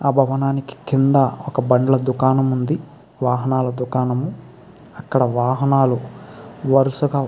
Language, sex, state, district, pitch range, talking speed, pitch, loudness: Telugu, male, Andhra Pradesh, Krishna, 130-140 Hz, 105 wpm, 135 Hz, -19 LUFS